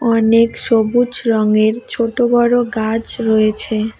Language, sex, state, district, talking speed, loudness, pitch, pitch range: Bengali, female, West Bengal, Cooch Behar, 105 wpm, -14 LUFS, 230 Hz, 220-240 Hz